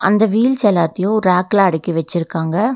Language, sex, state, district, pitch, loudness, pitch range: Tamil, female, Tamil Nadu, Nilgiris, 195 Hz, -15 LUFS, 170-215 Hz